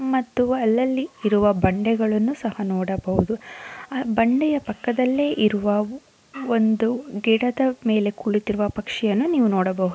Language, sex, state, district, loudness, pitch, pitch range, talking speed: Kannada, female, Karnataka, Mysore, -22 LUFS, 225 Hz, 210-255 Hz, 100 wpm